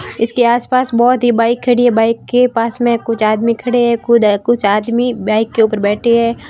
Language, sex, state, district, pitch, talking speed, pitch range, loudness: Hindi, female, Rajasthan, Barmer, 235 Hz, 220 wpm, 225-240 Hz, -13 LUFS